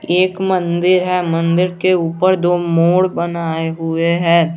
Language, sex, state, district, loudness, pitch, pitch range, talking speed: Hindi, male, Bihar, West Champaran, -15 LUFS, 175 Hz, 165-185 Hz, 145 wpm